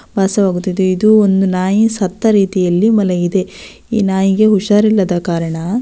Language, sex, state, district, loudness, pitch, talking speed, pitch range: Kannada, female, Karnataka, Belgaum, -13 LUFS, 195 Hz, 115 wpm, 185-210 Hz